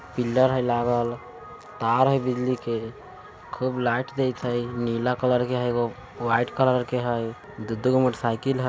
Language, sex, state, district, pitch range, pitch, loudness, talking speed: Hindi, male, Bihar, Vaishali, 120-125 Hz, 125 Hz, -25 LUFS, 165 wpm